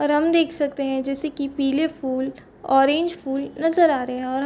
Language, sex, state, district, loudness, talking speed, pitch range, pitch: Hindi, female, Chhattisgarh, Bilaspur, -22 LUFS, 215 wpm, 270-315 Hz, 280 Hz